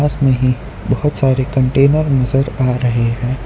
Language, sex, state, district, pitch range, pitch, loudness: Hindi, male, Gujarat, Valsad, 125-135 Hz, 130 Hz, -15 LUFS